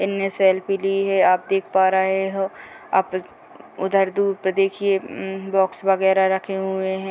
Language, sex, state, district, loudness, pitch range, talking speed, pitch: Hindi, female, Bihar, Gopalganj, -21 LUFS, 190-195 Hz, 175 wpm, 195 Hz